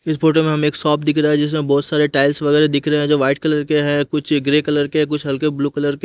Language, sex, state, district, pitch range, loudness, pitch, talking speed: Hindi, male, Haryana, Jhajjar, 145-150 Hz, -17 LUFS, 150 Hz, 305 wpm